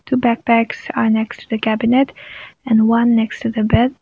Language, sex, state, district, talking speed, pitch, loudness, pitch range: English, female, Nagaland, Kohima, 195 wpm, 230 Hz, -16 LUFS, 220-240 Hz